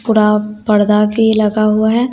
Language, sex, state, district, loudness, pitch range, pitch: Hindi, female, Bihar, West Champaran, -13 LUFS, 210-220 Hz, 215 Hz